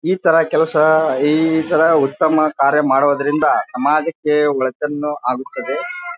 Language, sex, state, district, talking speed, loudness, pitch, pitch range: Kannada, male, Karnataka, Bijapur, 105 wpm, -16 LUFS, 150 Hz, 145-160 Hz